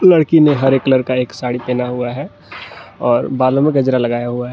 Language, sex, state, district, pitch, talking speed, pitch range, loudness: Hindi, male, Jharkhand, Garhwa, 130 Hz, 225 wpm, 125-140 Hz, -15 LUFS